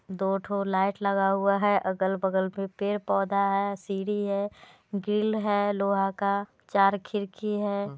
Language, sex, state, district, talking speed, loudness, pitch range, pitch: Hindi, female, Bihar, Muzaffarpur, 150 wpm, -27 LUFS, 195-205 Hz, 200 Hz